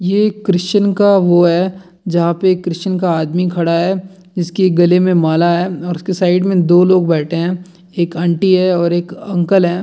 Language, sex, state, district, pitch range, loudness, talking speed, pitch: Hindi, male, Bihar, Jamui, 175-185 Hz, -14 LUFS, 200 wpm, 180 Hz